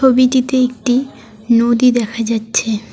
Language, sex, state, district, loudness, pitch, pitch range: Bengali, female, West Bengal, Alipurduar, -14 LUFS, 240 Hz, 225-255 Hz